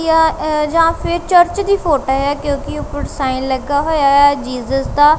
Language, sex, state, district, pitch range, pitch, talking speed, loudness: Punjabi, female, Punjab, Kapurthala, 275-325 Hz, 290 Hz, 175 wpm, -15 LUFS